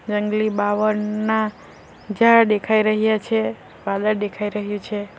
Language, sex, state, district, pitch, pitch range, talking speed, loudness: Gujarati, female, Gujarat, Valsad, 210 Hz, 205-215 Hz, 115 wpm, -20 LUFS